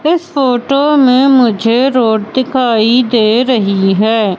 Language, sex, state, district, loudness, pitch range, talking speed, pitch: Hindi, female, Madhya Pradesh, Katni, -11 LUFS, 220-265 Hz, 125 wpm, 245 Hz